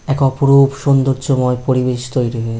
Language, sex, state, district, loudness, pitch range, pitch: Bengali, female, West Bengal, North 24 Parganas, -15 LUFS, 125-140 Hz, 130 Hz